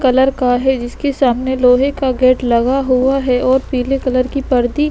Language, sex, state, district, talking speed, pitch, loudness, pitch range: Hindi, female, Uttar Pradesh, Etah, 205 wpm, 260 Hz, -14 LUFS, 250-270 Hz